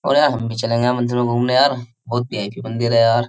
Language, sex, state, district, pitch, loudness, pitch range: Hindi, male, Uttar Pradesh, Jyotiba Phule Nagar, 120 Hz, -18 LUFS, 115-125 Hz